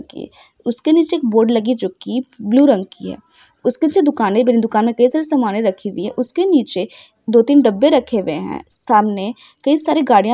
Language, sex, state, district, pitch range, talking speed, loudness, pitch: Hindi, female, Bihar, Sitamarhi, 220-290 Hz, 195 wpm, -16 LUFS, 245 Hz